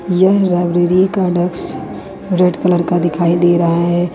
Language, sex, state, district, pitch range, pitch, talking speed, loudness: Hindi, female, Jharkhand, Ranchi, 175-180 Hz, 175 Hz, 160 wpm, -14 LUFS